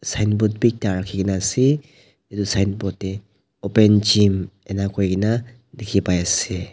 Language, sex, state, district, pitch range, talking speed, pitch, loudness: Nagamese, male, Nagaland, Dimapur, 95-110 Hz, 170 wpm, 100 Hz, -20 LUFS